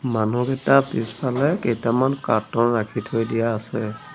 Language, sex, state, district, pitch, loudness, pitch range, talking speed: Assamese, male, Assam, Sonitpur, 115 Hz, -22 LUFS, 110-130 Hz, 100 wpm